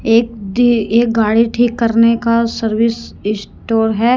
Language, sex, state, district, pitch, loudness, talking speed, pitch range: Hindi, female, Haryana, Rohtak, 230 Hz, -14 LUFS, 130 wpm, 225-235 Hz